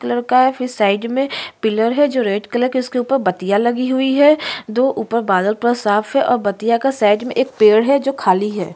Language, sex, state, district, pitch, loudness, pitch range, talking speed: Hindi, female, Uttarakhand, Tehri Garhwal, 240 Hz, -16 LUFS, 210-255 Hz, 240 wpm